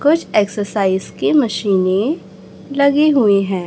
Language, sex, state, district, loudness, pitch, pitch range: Hindi, male, Chhattisgarh, Raipur, -16 LUFS, 210 Hz, 195-285 Hz